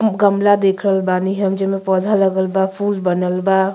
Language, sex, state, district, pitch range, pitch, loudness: Bhojpuri, female, Uttar Pradesh, Ghazipur, 190-200 Hz, 195 Hz, -16 LUFS